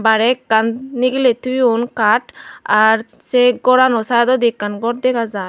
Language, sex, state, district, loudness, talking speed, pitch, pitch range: Chakma, female, Tripura, Unakoti, -15 LUFS, 140 wpm, 235 Hz, 220-255 Hz